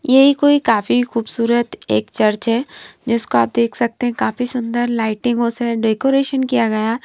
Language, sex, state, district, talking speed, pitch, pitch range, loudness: Hindi, female, Punjab, Pathankot, 170 wpm, 235 Hz, 225-250 Hz, -17 LUFS